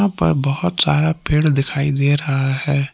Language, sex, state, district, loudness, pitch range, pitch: Hindi, male, Jharkhand, Palamu, -17 LUFS, 140-155 Hz, 145 Hz